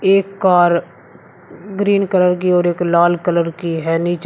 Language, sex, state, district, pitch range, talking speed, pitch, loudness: Hindi, male, Uttar Pradesh, Shamli, 170-190 Hz, 170 wpm, 175 Hz, -15 LUFS